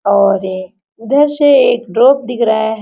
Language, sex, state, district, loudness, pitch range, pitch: Hindi, female, Jharkhand, Sahebganj, -12 LUFS, 200-265 Hz, 225 Hz